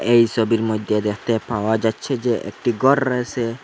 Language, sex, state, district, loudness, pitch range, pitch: Bengali, male, Assam, Hailakandi, -20 LUFS, 110-125 Hz, 115 Hz